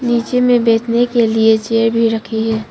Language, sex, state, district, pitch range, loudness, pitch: Hindi, female, Arunachal Pradesh, Papum Pare, 225-235 Hz, -14 LUFS, 230 Hz